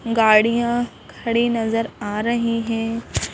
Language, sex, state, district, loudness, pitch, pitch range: Hindi, female, Madhya Pradesh, Bhopal, -20 LUFS, 230 Hz, 225-235 Hz